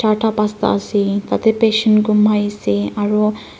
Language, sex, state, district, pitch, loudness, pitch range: Nagamese, female, Nagaland, Dimapur, 210 Hz, -16 LUFS, 205-215 Hz